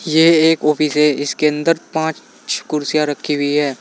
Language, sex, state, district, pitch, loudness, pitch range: Hindi, male, Uttar Pradesh, Saharanpur, 150 Hz, -16 LUFS, 150-160 Hz